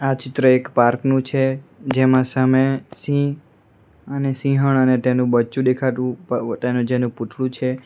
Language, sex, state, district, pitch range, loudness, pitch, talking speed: Gujarati, male, Gujarat, Valsad, 125-135 Hz, -19 LUFS, 130 Hz, 145 wpm